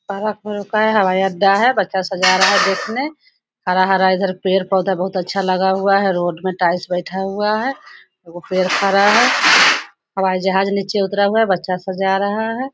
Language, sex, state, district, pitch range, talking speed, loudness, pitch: Hindi, female, Bihar, Madhepura, 185-205 Hz, 155 wpm, -16 LUFS, 195 Hz